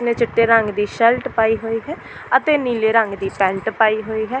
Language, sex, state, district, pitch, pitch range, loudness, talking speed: Punjabi, female, Delhi, New Delhi, 225 Hz, 220-235 Hz, -18 LUFS, 220 wpm